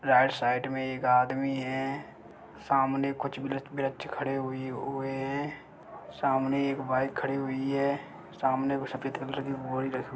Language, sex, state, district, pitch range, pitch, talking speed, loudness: Hindi, male, Bihar, East Champaran, 130-135 Hz, 135 Hz, 130 wpm, -30 LUFS